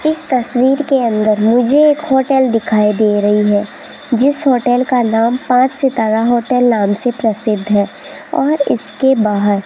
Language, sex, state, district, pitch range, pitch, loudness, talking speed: Hindi, female, Rajasthan, Jaipur, 215-265 Hz, 240 Hz, -13 LUFS, 160 wpm